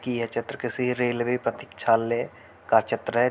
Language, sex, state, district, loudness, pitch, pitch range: Hindi, male, Uttar Pradesh, Hamirpur, -26 LUFS, 120 Hz, 115-125 Hz